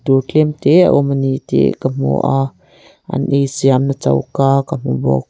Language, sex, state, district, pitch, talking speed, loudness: Mizo, female, Mizoram, Aizawl, 135 Hz, 215 wpm, -15 LUFS